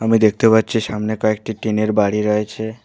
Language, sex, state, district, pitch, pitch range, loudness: Bengali, male, West Bengal, Alipurduar, 110 Hz, 105-110 Hz, -18 LUFS